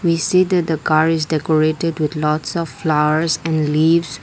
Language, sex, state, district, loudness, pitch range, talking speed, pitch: English, female, Assam, Kamrup Metropolitan, -17 LUFS, 150-165 Hz, 185 wpm, 155 Hz